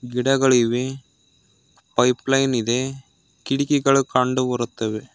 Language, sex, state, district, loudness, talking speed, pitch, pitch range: Kannada, male, Karnataka, Koppal, -20 LUFS, 70 wpm, 130 Hz, 125-135 Hz